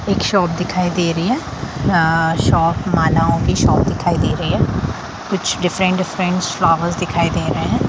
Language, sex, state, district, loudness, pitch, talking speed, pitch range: Hindi, female, Bihar, Sitamarhi, -17 LUFS, 170 Hz, 180 wpm, 165-180 Hz